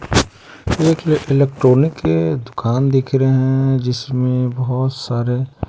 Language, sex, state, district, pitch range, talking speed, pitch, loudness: Hindi, male, Bihar, West Champaran, 125-135 Hz, 115 wpm, 130 Hz, -17 LUFS